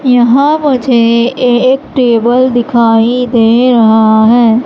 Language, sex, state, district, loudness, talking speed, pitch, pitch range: Hindi, female, Madhya Pradesh, Katni, -8 LUFS, 105 wpm, 240 Hz, 230-255 Hz